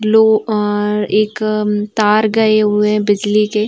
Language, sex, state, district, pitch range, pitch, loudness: Hindi, female, Uttar Pradesh, Varanasi, 210-215 Hz, 210 Hz, -14 LUFS